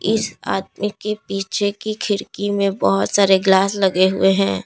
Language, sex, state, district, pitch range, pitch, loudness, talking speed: Hindi, female, Assam, Kamrup Metropolitan, 190-205 Hz, 195 Hz, -18 LUFS, 165 wpm